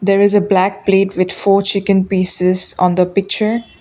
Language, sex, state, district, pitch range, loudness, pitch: English, female, Assam, Kamrup Metropolitan, 185-200 Hz, -14 LUFS, 195 Hz